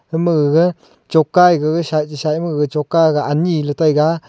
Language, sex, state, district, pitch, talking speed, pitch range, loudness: Wancho, male, Arunachal Pradesh, Longding, 155 Hz, 195 wpm, 150-165 Hz, -15 LUFS